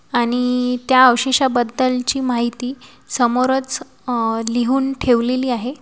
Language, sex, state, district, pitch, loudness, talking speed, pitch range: Marathi, female, Maharashtra, Washim, 250 Hz, -18 LUFS, 105 wpm, 240-260 Hz